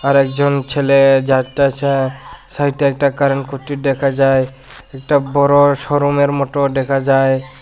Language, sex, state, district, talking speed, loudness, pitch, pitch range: Bengali, male, Tripura, West Tripura, 120 wpm, -15 LUFS, 140 Hz, 135-140 Hz